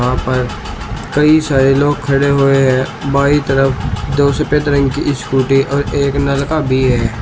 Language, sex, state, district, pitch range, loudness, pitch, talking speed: Hindi, male, Uttar Pradesh, Shamli, 130-140 Hz, -14 LUFS, 140 Hz, 165 wpm